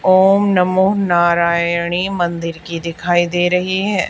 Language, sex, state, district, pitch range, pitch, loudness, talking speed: Hindi, female, Haryana, Charkhi Dadri, 170-190 Hz, 175 Hz, -15 LUFS, 130 wpm